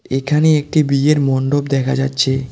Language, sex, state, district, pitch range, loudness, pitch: Bengali, male, West Bengal, Cooch Behar, 135-150 Hz, -15 LUFS, 140 Hz